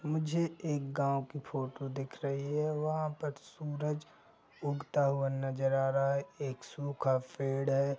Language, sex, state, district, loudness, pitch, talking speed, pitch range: Hindi, male, Chhattisgarh, Korba, -35 LUFS, 140 Hz, 160 wpm, 135-150 Hz